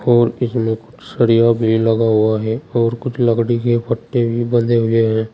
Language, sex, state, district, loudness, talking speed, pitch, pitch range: Hindi, male, Uttar Pradesh, Saharanpur, -16 LUFS, 190 wpm, 115 Hz, 115-120 Hz